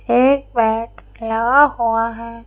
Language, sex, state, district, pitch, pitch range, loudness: Hindi, female, Madhya Pradesh, Bhopal, 230 Hz, 225-250 Hz, -17 LUFS